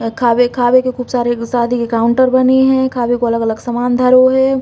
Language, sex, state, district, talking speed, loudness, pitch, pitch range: Bundeli, female, Uttar Pradesh, Hamirpur, 235 wpm, -13 LUFS, 245 Hz, 240-255 Hz